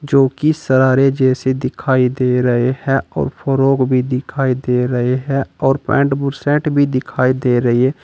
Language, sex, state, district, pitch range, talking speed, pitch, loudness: Hindi, male, Uttar Pradesh, Saharanpur, 130-135 Hz, 180 wpm, 130 Hz, -16 LUFS